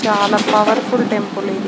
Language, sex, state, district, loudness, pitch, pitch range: Telugu, female, Andhra Pradesh, Srikakulam, -16 LUFS, 215 Hz, 210-240 Hz